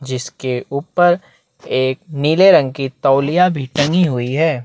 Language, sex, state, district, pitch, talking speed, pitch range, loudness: Hindi, male, Chhattisgarh, Bastar, 140 Hz, 130 wpm, 130-165 Hz, -16 LUFS